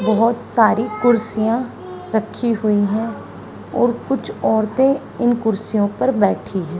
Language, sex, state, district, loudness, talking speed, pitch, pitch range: Hindi, female, Haryana, Charkhi Dadri, -18 LUFS, 125 wpm, 220 Hz, 210-240 Hz